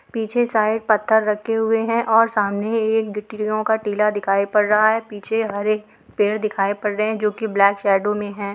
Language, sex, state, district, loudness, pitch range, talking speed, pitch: Hindi, female, Bihar, Saran, -20 LUFS, 205-220 Hz, 215 wpm, 215 Hz